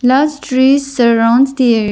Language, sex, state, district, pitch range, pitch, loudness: English, female, Arunachal Pradesh, Lower Dibang Valley, 235-275 Hz, 255 Hz, -12 LUFS